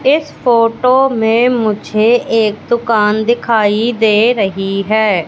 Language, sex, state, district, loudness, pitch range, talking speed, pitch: Hindi, female, Madhya Pradesh, Katni, -13 LUFS, 215-240 Hz, 115 wpm, 225 Hz